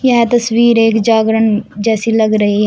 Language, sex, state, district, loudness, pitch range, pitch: Hindi, female, Uttar Pradesh, Shamli, -12 LUFS, 215-230 Hz, 225 Hz